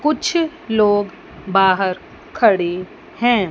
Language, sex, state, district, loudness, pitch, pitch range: Hindi, female, Chandigarh, Chandigarh, -17 LUFS, 205 Hz, 190-255 Hz